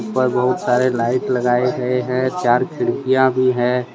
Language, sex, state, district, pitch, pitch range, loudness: Hindi, male, Jharkhand, Deoghar, 125 Hz, 125-130 Hz, -18 LUFS